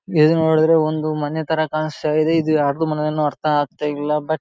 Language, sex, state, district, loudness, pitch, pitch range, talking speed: Kannada, male, Karnataka, Bellary, -19 LUFS, 155 Hz, 150-160 Hz, 205 wpm